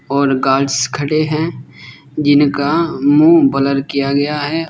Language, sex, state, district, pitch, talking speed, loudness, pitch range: Hindi, male, Uttar Pradesh, Saharanpur, 145 Hz, 125 wpm, -14 LUFS, 140-155 Hz